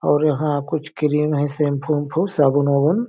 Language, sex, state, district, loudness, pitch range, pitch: Hindi, male, Chhattisgarh, Balrampur, -19 LUFS, 145-155 Hz, 150 Hz